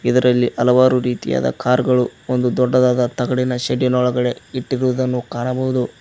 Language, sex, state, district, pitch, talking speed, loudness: Kannada, male, Karnataka, Koppal, 125 Hz, 120 wpm, -18 LUFS